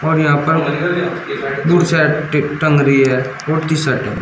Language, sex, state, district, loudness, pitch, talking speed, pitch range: Hindi, male, Uttar Pradesh, Shamli, -15 LUFS, 155 Hz, 170 wpm, 140-160 Hz